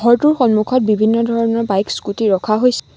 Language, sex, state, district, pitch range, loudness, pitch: Assamese, female, Assam, Sonitpur, 215-240 Hz, -15 LUFS, 230 Hz